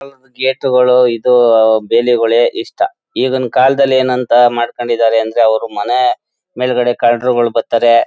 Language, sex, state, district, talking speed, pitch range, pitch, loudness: Kannada, male, Karnataka, Mysore, 120 wpm, 115-130 Hz, 120 Hz, -12 LUFS